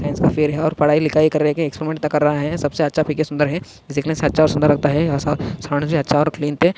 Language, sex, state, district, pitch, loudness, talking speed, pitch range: Hindi, male, Maharashtra, Sindhudurg, 150 Hz, -18 LUFS, 320 wpm, 145-155 Hz